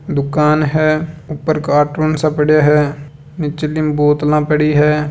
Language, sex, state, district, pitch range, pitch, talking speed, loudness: Hindi, male, Rajasthan, Nagaur, 150-155 Hz, 150 Hz, 140 wpm, -14 LUFS